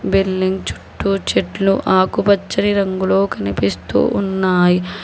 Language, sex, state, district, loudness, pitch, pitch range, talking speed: Telugu, female, Telangana, Hyderabad, -17 LUFS, 190 Hz, 180-195 Hz, 85 wpm